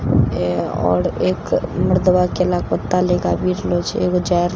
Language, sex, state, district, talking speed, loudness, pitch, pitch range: Maithili, female, Bihar, Katihar, 210 wpm, -18 LUFS, 180 Hz, 120-180 Hz